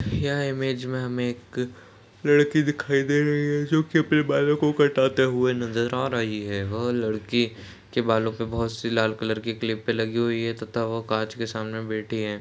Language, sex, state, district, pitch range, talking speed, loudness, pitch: Hindi, male, Uttar Pradesh, Hamirpur, 110-135 Hz, 205 wpm, -25 LUFS, 115 Hz